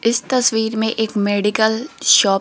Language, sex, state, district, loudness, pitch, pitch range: Hindi, female, Rajasthan, Jaipur, -17 LUFS, 220 Hz, 210-230 Hz